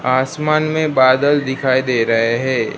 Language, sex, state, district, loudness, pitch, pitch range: Hindi, male, Gujarat, Gandhinagar, -15 LUFS, 130 Hz, 130-145 Hz